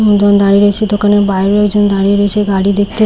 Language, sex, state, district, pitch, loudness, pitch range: Bengali, female, West Bengal, Paschim Medinipur, 205 Hz, -11 LUFS, 200-210 Hz